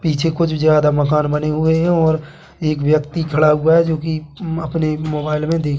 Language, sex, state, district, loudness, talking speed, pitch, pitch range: Hindi, male, Chhattisgarh, Bilaspur, -17 LUFS, 195 wpm, 155 Hz, 150-160 Hz